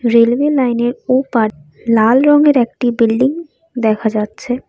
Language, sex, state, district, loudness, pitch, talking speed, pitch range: Bengali, female, Assam, Kamrup Metropolitan, -14 LUFS, 240 Hz, 115 wpm, 225-265 Hz